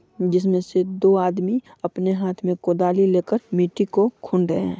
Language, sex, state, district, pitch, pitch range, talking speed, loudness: Hindi, female, Bihar, Supaul, 185 Hz, 180-195 Hz, 185 wpm, -21 LUFS